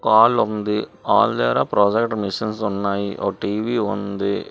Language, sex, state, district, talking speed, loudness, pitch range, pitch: Telugu, male, Andhra Pradesh, Srikakulam, 135 wpm, -20 LUFS, 100-105 Hz, 100 Hz